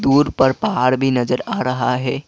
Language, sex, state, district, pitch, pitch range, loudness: Hindi, male, Assam, Kamrup Metropolitan, 130 Hz, 125-135 Hz, -18 LUFS